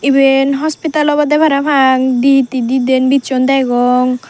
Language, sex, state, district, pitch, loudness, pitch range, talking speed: Chakma, female, Tripura, Dhalai, 270 Hz, -12 LUFS, 255-290 Hz, 125 wpm